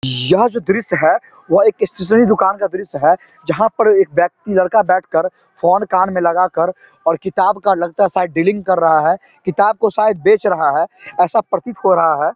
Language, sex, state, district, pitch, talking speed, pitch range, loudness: Hindi, male, Bihar, Samastipur, 190 Hz, 205 wpm, 175-210 Hz, -15 LUFS